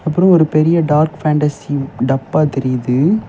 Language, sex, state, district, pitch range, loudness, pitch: Tamil, male, Tamil Nadu, Kanyakumari, 135-155 Hz, -15 LUFS, 150 Hz